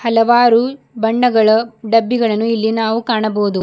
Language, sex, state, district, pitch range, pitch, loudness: Kannada, female, Karnataka, Bidar, 220-235 Hz, 225 Hz, -14 LUFS